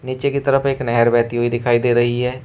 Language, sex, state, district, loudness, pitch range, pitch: Hindi, male, Uttar Pradesh, Shamli, -17 LUFS, 120-130 Hz, 120 Hz